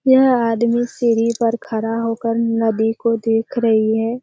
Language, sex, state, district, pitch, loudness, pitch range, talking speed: Hindi, female, Bihar, Kishanganj, 230 Hz, -18 LUFS, 225-235 Hz, 155 wpm